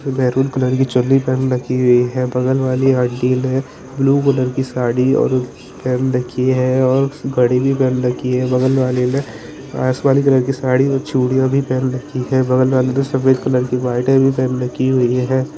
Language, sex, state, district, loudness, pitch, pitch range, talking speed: Hindi, male, Chandigarh, Chandigarh, -16 LUFS, 130 Hz, 125-135 Hz, 195 wpm